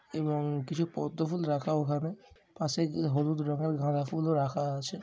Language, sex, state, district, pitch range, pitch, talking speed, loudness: Bengali, male, West Bengal, Jhargram, 145-160 Hz, 155 Hz, 155 wpm, -32 LUFS